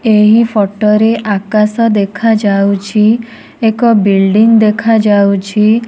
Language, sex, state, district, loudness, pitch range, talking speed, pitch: Odia, female, Odisha, Nuapada, -10 LUFS, 205-225 Hz, 80 wpm, 215 Hz